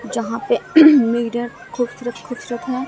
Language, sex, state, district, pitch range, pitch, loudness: Hindi, female, Bihar, Katihar, 235-255 Hz, 240 Hz, -17 LUFS